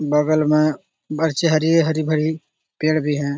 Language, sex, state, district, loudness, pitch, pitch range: Magahi, male, Bihar, Jahanabad, -19 LUFS, 155 Hz, 150-160 Hz